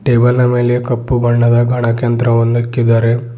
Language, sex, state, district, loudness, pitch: Kannada, male, Karnataka, Bidar, -13 LUFS, 120 Hz